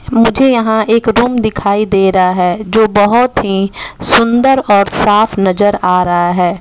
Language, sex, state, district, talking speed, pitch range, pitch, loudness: Hindi, female, Bihar, West Champaran, 165 wpm, 190-230 Hz, 205 Hz, -11 LUFS